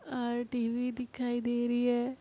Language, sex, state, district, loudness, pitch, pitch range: Hindi, female, Uttar Pradesh, Etah, -32 LUFS, 245 Hz, 240-250 Hz